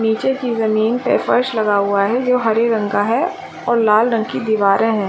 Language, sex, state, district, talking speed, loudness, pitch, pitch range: Hindi, female, Jharkhand, Sahebganj, 235 wpm, -16 LUFS, 225 Hz, 215-240 Hz